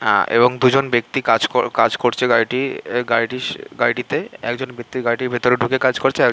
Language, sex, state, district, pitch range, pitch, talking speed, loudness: Bengali, male, West Bengal, Malda, 120-130 Hz, 125 Hz, 160 wpm, -18 LUFS